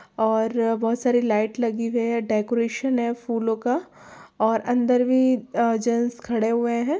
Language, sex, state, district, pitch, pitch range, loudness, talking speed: Hindi, female, Bihar, Lakhisarai, 235 Hz, 225-245 Hz, -23 LUFS, 155 wpm